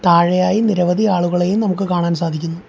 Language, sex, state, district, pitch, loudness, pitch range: Malayalam, male, Kerala, Kollam, 180 Hz, -16 LUFS, 170-195 Hz